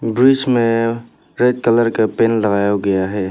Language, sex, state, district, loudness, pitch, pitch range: Hindi, male, Arunachal Pradesh, Papum Pare, -16 LUFS, 115 Hz, 100-120 Hz